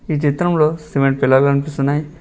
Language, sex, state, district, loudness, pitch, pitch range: Telugu, male, Telangana, Mahabubabad, -16 LUFS, 145 Hz, 140-155 Hz